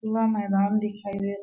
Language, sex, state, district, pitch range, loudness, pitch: Hindi, female, Chhattisgarh, Sarguja, 200-215 Hz, -26 LUFS, 205 Hz